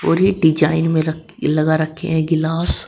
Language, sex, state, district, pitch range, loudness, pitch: Hindi, female, Uttar Pradesh, Shamli, 155-165 Hz, -17 LUFS, 160 Hz